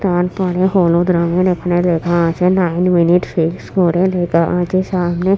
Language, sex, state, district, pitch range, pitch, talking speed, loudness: Bengali, female, West Bengal, Purulia, 175-185 Hz, 180 Hz, 155 wpm, -15 LUFS